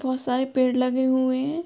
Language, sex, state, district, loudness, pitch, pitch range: Hindi, female, Uttar Pradesh, Hamirpur, -23 LUFS, 260 Hz, 255-260 Hz